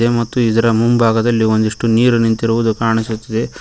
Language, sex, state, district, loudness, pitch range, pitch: Kannada, male, Karnataka, Koppal, -15 LUFS, 110-115 Hz, 115 Hz